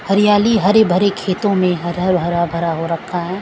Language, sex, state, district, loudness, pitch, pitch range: Hindi, female, Punjab, Kapurthala, -16 LUFS, 185 Hz, 175-200 Hz